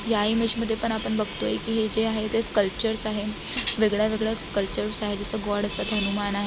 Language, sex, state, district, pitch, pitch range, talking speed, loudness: Marathi, female, Maharashtra, Dhule, 215 Hz, 205-220 Hz, 175 wpm, -23 LUFS